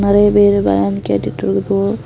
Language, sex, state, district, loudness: Tamil, female, Tamil Nadu, Kanyakumari, -14 LUFS